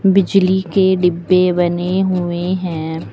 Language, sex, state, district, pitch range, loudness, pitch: Hindi, female, Uttar Pradesh, Lucknow, 175-190 Hz, -16 LUFS, 180 Hz